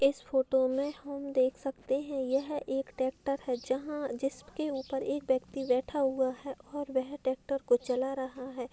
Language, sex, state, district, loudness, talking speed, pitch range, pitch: Hindi, female, Bihar, Gaya, -33 LUFS, 180 wpm, 260-280 Hz, 265 Hz